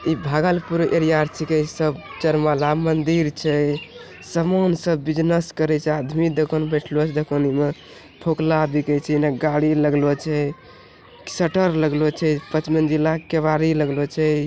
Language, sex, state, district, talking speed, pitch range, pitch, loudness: Angika, male, Bihar, Bhagalpur, 150 wpm, 150-160 Hz, 155 Hz, -20 LUFS